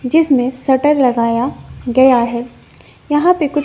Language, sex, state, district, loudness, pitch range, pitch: Hindi, female, Bihar, West Champaran, -14 LUFS, 245-295 Hz, 260 Hz